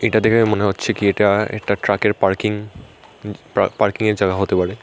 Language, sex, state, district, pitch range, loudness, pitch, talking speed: Bengali, male, Tripura, Unakoti, 100-110 Hz, -18 LUFS, 105 Hz, 185 wpm